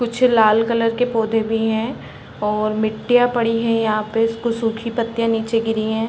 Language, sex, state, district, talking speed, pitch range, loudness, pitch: Hindi, female, Uttar Pradesh, Varanasi, 185 wpm, 220-230 Hz, -19 LUFS, 225 Hz